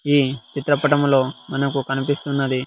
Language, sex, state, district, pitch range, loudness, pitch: Telugu, male, Andhra Pradesh, Sri Satya Sai, 135-145 Hz, -20 LUFS, 140 Hz